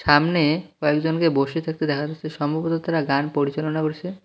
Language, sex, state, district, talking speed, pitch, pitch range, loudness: Bengali, male, West Bengal, Cooch Behar, 155 wpm, 155 Hz, 150-165 Hz, -22 LUFS